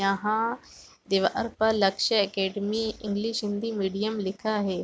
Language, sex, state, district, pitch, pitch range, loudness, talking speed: Hindi, female, Chhattisgarh, Raigarh, 210 Hz, 195-220 Hz, -27 LUFS, 125 wpm